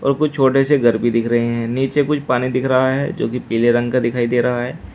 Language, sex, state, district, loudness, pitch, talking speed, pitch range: Hindi, male, Uttar Pradesh, Shamli, -17 LUFS, 125 Hz, 280 wpm, 120-135 Hz